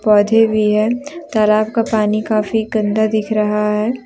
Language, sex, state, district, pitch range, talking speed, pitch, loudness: Hindi, female, Jharkhand, Deoghar, 210-225 Hz, 160 wpm, 215 Hz, -16 LUFS